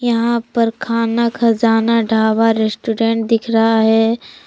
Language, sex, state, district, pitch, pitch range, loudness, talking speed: Hindi, female, Jharkhand, Palamu, 230 Hz, 225-230 Hz, -15 LUFS, 120 wpm